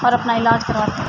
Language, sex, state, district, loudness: Urdu, female, Andhra Pradesh, Anantapur, -17 LUFS